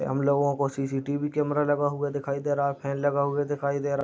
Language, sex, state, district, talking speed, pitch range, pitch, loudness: Hindi, male, Bihar, Madhepura, 250 wpm, 140-145 Hz, 140 Hz, -27 LUFS